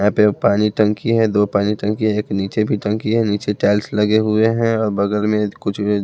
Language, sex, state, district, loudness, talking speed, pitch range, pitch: Hindi, male, Himachal Pradesh, Shimla, -17 LUFS, 240 wpm, 105-110 Hz, 105 Hz